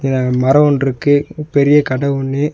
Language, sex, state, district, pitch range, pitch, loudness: Tamil, male, Tamil Nadu, Nilgiris, 135-145 Hz, 140 Hz, -14 LUFS